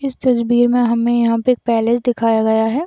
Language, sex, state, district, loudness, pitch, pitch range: Hindi, female, Jharkhand, Sahebganj, -16 LUFS, 235 Hz, 230-245 Hz